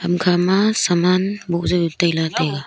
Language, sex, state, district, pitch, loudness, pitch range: Wancho, female, Arunachal Pradesh, Longding, 175 Hz, -18 LUFS, 170-185 Hz